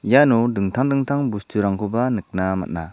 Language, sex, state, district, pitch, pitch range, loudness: Garo, male, Meghalaya, South Garo Hills, 105 Hz, 95-125 Hz, -20 LUFS